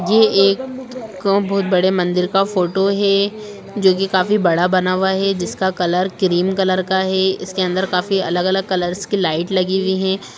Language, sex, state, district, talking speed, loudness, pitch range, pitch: Hindi, female, Bihar, Gaya, 175 wpm, -17 LUFS, 185-195 Hz, 190 Hz